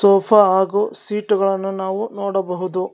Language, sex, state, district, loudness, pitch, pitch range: Kannada, male, Karnataka, Bangalore, -18 LUFS, 195 Hz, 190-205 Hz